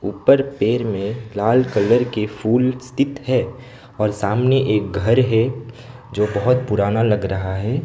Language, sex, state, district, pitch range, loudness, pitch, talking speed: Hindi, male, West Bengal, Alipurduar, 105-125 Hz, -19 LUFS, 115 Hz, 155 wpm